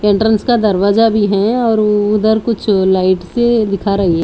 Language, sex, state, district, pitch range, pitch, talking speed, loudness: Hindi, female, Haryana, Charkhi Dadri, 200-220 Hz, 210 Hz, 185 wpm, -13 LUFS